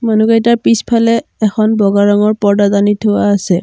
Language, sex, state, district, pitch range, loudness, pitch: Assamese, female, Assam, Kamrup Metropolitan, 205-230 Hz, -12 LUFS, 215 Hz